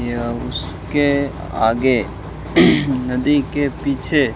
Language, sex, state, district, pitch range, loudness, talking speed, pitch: Hindi, male, Rajasthan, Bikaner, 120-145 Hz, -18 LUFS, 85 wpm, 130 Hz